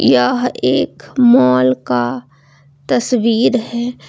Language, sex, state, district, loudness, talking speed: Hindi, female, Karnataka, Bangalore, -14 LUFS, 90 wpm